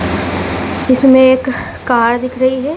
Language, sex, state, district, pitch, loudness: Hindi, female, Madhya Pradesh, Dhar, 255 Hz, -13 LUFS